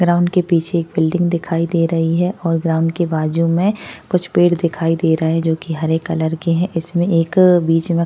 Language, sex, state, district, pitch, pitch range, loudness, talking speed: Hindi, female, Maharashtra, Chandrapur, 165 Hz, 165-175 Hz, -17 LUFS, 230 wpm